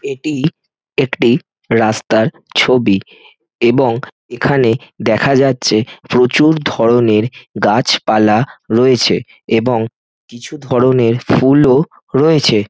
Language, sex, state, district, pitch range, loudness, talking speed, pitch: Bengali, male, West Bengal, Jhargram, 115-140 Hz, -13 LUFS, 85 wpm, 125 Hz